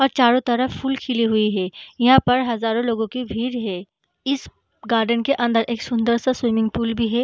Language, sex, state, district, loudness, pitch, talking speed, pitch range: Hindi, female, Bihar, Gaya, -20 LUFS, 235 Hz, 200 wpm, 225-250 Hz